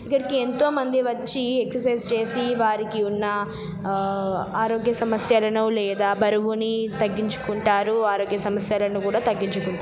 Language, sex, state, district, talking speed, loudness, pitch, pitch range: Telugu, female, Telangana, Nalgonda, 105 wpm, -23 LUFS, 215 Hz, 205-235 Hz